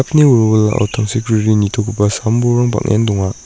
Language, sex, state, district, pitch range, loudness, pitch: Garo, male, Meghalaya, North Garo Hills, 105-120 Hz, -14 LUFS, 110 Hz